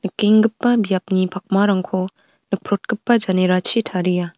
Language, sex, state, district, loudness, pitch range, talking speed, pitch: Garo, female, Meghalaya, North Garo Hills, -18 LUFS, 185-215 Hz, 80 wpm, 195 Hz